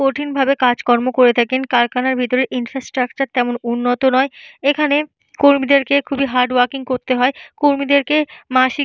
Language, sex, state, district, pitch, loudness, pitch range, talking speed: Bengali, female, Jharkhand, Jamtara, 265 Hz, -16 LUFS, 250-280 Hz, 140 wpm